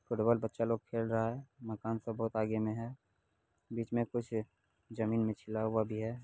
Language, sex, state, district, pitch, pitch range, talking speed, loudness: Hindi, male, Bihar, Purnia, 115 Hz, 110-115 Hz, 200 wpm, -36 LUFS